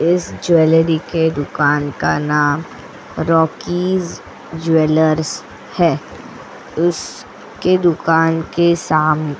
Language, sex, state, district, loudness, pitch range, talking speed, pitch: Hindi, female, Goa, North and South Goa, -16 LUFS, 155-170 Hz, 90 wpm, 160 Hz